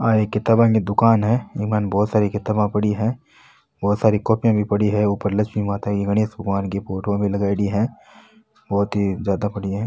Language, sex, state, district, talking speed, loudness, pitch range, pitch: Marwari, male, Rajasthan, Nagaur, 200 wpm, -20 LUFS, 100-110 Hz, 105 Hz